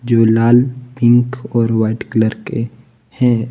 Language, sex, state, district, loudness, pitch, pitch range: Hindi, male, Jharkhand, Palamu, -15 LUFS, 120 Hz, 115-120 Hz